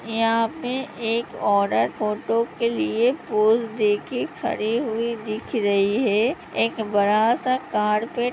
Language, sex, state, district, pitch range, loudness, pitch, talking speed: Hindi, female, Uttar Pradesh, Hamirpur, 210-235 Hz, -22 LUFS, 225 Hz, 135 wpm